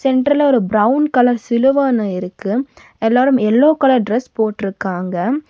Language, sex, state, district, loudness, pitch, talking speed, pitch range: Tamil, female, Tamil Nadu, Nilgiris, -15 LUFS, 245 Hz, 130 wpm, 215-270 Hz